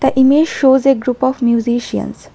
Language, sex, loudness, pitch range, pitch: English, female, -14 LUFS, 240-270 Hz, 265 Hz